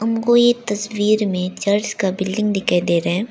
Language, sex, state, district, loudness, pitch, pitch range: Hindi, female, Arunachal Pradesh, Lower Dibang Valley, -18 LUFS, 205 Hz, 190-220 Hz